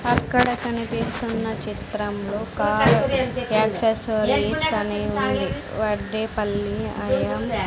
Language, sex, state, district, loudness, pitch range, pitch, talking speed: Telugu, female, Andhra Pradesh, Sri Satya Sai, -23 LUFS, 210-230 Hz, 220 Hz, 80 wpm